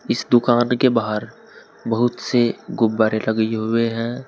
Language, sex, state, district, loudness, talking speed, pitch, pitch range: Hindi, male, Uttar Pradesh, Saharanpur, -19 LUFS, 140 wpm, 115 Hz, 110-120 Hz